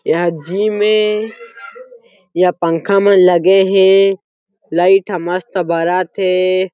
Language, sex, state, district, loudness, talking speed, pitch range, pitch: Chhattisgarhi, male, Chhattisgarh, Jashpur, -13 LUFS, 105 wpm, 180-210 Hz, 190 Hz